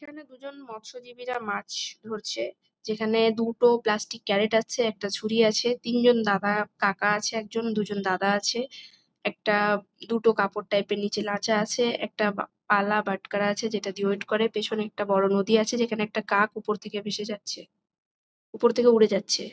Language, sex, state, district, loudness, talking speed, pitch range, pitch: Bengali, female, West Bengal, North 24 Parganas, -26 LUFS, 165 wpm, 205-230 Hz, 215 Hz